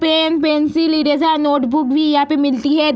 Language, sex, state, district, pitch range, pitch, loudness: Hindi, female, Bihar, Sitamarhi, 290-315 Hz, 300 Hz, -15 LUFS